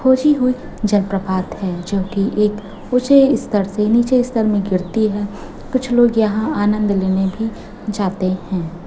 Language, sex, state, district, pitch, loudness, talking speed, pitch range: Hindi, female, Chhattisgarh, Raipur, 210 Hz, -17 LUFS, 155 wpm, 190-235 Hz